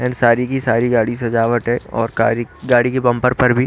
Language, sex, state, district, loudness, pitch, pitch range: Hindi, male, Haryana, Rohtak, -16 LUFS, 120 Hz, 115-125 Hz